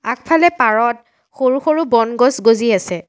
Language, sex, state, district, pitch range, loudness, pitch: Assamese, female, Assam, Sonitpur, 230-285 Hz, -14 LUFS, 240 Hz